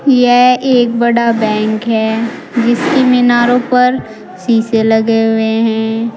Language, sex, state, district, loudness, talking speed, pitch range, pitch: Hindi, female, Uttar Pradesh, Saharanpur, -12 LUFS, 115 wpm, 225-245 Hz, 235 Hz